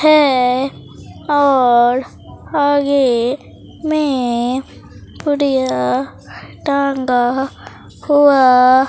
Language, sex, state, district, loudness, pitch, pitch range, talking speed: Hindi, female, Bihar, Katihar, -15 LUFS, 265 Hz, 250-285 Hz, 45 wpm